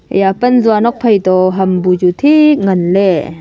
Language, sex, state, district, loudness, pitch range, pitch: Wancho, female, Arunachal Pradesh, Longding, -11 LUFS, 185-235 Hz, 195 Hz